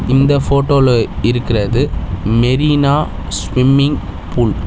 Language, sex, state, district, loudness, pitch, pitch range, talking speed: Tamil, male, Tamil Nadu, Chennai, -14 LUFS, 125 Hz, 105-140 Hz, 90 wpm